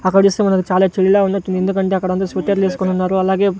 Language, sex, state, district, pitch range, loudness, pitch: Telugu, male, Andhra Pradesh, Sri Satya Sai, 185-195 Hz, -16 LUFS, 190 Hz